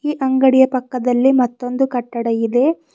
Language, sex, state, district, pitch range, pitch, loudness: Kannada, female, Karnataka, Bidar, 245-265 Hz, 255 Hz, -16 LUFS